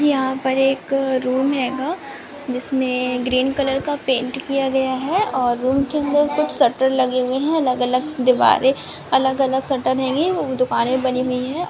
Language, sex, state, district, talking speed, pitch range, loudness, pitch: Hindi, female, Bihar, Gopalganj, 160 wpm, 255-275 Hz, -19 LUFS, 265 Hz